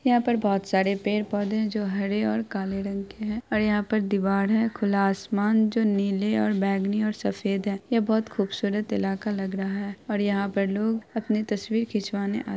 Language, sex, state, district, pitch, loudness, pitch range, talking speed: Hindi, female, Bihar, Araria, 210 Hz, -26 LUFS, 200-220 Hz, 215 wpm